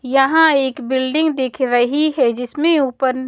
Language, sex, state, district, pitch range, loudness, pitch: Hindi, female, Bihar, West Champaran, 255-300 Hz, -16 LUFS, 265 Hz